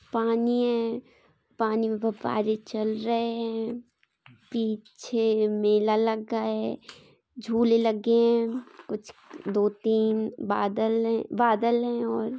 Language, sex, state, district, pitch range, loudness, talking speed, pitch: Hindi, female, Chhattisgarh, Kabirdham, 220-235 Hz, -26 LUFS, 105 wpm, 225 Hz